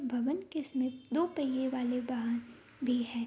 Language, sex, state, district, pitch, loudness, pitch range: Hindi, female, Bihar, Madhepura, 255 Hz, -34 LUFS, 245-280 Hz